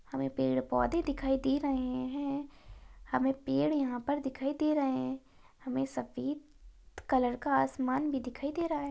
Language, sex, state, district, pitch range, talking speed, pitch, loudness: Hindi, female, Bihar, Saharsa, 255-285 Hz, 170 wpm, 270 Hz, -33 LUFS